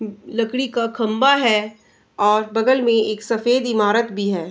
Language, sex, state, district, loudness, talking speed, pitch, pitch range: Hindi, female, Bihar, Araria, -19 LUFS, 175 wpm, 225 Hz, 215-235 Hz